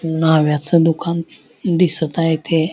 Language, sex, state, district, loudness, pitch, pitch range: Marathi, male, Maharashtra, Dhule, -15 LUFS, 165 Hz, 160-170 Hz